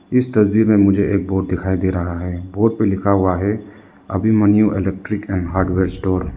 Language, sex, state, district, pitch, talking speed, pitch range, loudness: Hindi, male, Arunachal Pradesh, Lower Dibang Valley, 95 Hz, 200 wpm, 95-105 Hz, -17 LUFS